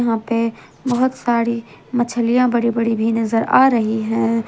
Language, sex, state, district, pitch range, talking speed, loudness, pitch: Hindi, female, Jharkhand, Ranchi, 225-240 Hz, 160 wpm, -18 LUFS, 230 Hz